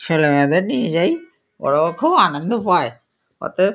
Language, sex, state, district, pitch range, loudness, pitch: Bengali, male, West Bengal, Kolkata, 160-235 Hz, -18 LUFS, 180 Hz